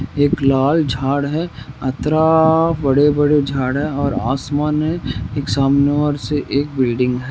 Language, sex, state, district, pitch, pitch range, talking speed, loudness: Hindi, male, Rajasthan, Nagaur, 140 Hz, 135-150 Hz, 145 wpm, -17 LUFS